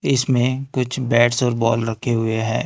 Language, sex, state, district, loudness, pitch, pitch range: Hindi, male, Maharashtra, Gondia, -19 LUFS, 120 Hz, 115-130 Hz